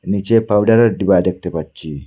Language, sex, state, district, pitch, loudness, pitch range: Bengali, male, Assam, Hailakandi, 95 Hz, -15 LUFS, 85-110 Hz